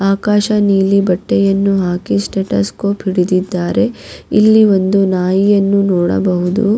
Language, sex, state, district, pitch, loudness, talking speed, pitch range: Kannada, female, Karnataka, Raichur, 195 Hz, -13 LUFS, 55 wpm, 180-205 Hz